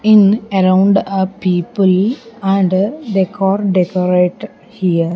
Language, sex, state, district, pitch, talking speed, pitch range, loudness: English, female, Andhra Pradesh, Sri Satya Sai, 195 Hz, 105 wpm, 185-200 Hz, -14 LUFS